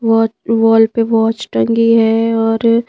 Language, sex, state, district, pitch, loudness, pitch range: Hindi, female, Madhya Pradesh, Bhopal, 225 Hz, -13 LUFS, 225-230 Hz